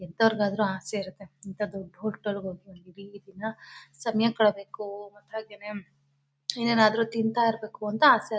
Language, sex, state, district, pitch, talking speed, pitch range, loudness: Kannada, female, Karnataka, Mysore, 205 Hz, 115 wpm, 195-220 Hz, -27 LUFS